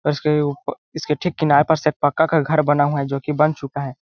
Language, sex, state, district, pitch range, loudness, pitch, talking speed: Hindi, male, Chhattisgarh, Balrampur, 145-155 Hz, -19 LUFS, 150 Hz, 285 wpm